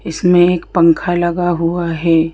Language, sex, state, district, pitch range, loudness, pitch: Hindi, female, Madhya Pradesh, Bhopal, 165-175 Hz, -14 LUFS, 175 Hz